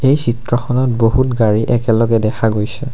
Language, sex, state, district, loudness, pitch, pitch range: Assamese, male, Assam, Sonitpur, -15 LUFS, 120 Hz, 110-125 Hz